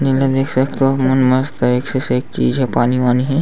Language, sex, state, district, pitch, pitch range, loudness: Chhattisgarhi, male, Chhattisgarh, Sarguja, 130 Hz, 125-135 Hz, -16 LUFS